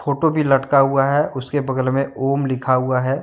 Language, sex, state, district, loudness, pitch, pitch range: Hindi, male, Jharkhand, Deoghar, -18 LUFS, 135 Hz, 130-140 Hz